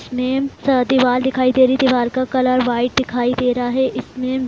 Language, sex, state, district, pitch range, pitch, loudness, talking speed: Hindi, female, Uttar Pradesh, Varanasi, 250-260 Hz, 255 Hz, -17 LUFS, 225 wpm